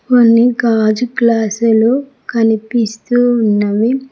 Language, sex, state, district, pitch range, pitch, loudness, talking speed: Telugu, female, Telangana, Mahabubabad, 220-245 Hz, 230 Hz, -13 LUFS, 75 wpm